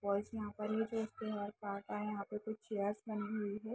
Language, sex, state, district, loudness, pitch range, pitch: Hindi, female, Jharkhand, Sahebganj, -41 LUFS, 205-220 Hz, 210 Hz